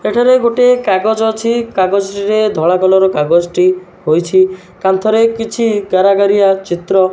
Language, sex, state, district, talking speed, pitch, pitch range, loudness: Odia, male, Odisha, Malkangiri, 120 wpm, 195 Hz, 185-220 Hz, -12 LUFS